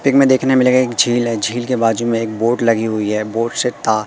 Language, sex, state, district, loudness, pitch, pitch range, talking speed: Hindi, male, Madhya Pradesh, Katni, -16 LUFS, 115 Hz, 110-125 Hz, 280 wpm